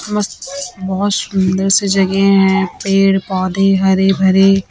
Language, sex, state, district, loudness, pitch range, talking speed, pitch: Hindi, female, Chhattisgarh, Raipur, -13 LUFS, 190-195 Hz, 115 wpm, 195 Hz